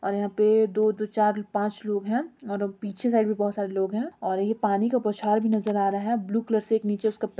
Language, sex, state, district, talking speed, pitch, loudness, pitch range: Hindi, female, Bihar, Gopalganj, 265 wpm, 215 Hz, -26 LUFS, 205-220 Hz